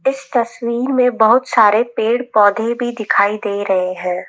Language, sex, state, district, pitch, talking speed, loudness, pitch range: Hindi, female, Rajasthan, Jaipur, 225 Hz, 165 wpm, -15 LUFS, 205-245 Hz